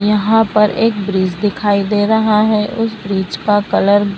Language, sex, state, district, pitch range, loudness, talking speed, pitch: Hindi, female, Maharashtra, Mumbai Suburban, 200-215 Hz, -14 LUFS, 185 wpm, 205 Hz